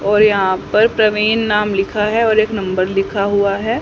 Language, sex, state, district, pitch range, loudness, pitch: Hindi, female, Haryana, Charkhi Dadri, 200-215 Hz, -15 LUFS, 210 Hz